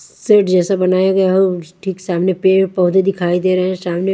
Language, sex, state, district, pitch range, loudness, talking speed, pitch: Hindi, female, Haryana, Charkhi Dadri, 180-190 Hz, -15 LUFS, 205 wpm, 185 Hz